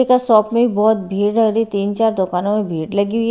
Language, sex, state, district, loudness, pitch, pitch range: Hindi, female, Haryana, Rohtak, -16 LUFS, 215 Hz, 200-225 Hz